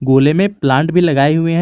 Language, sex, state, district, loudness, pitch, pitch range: Hindi, male, Jharkhand, Garhwa, -13 LUFS, 155 Hz, 140-170 Hz